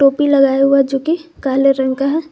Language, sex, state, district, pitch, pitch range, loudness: Hindi, female, Jharkhand, Garhwa, 275 Hz, 270-290 Hz, -14 LUFS